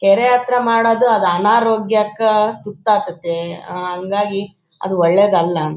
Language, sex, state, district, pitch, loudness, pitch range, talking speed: Kannada, male, Karnataka, Bellary, 205 Hz, -16 LUFS, 175-220 Hz, 115 wpm